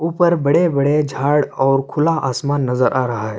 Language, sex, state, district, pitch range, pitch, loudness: Urdu, male, Uttar Pradesh, Budaun, 130-150 Hz, 140 Hz, -17 LUFS